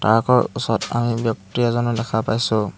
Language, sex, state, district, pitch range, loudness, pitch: Assamese, male, Assam, Hailakandi, 110-120 Hz, -20 LUFS, 115 Hz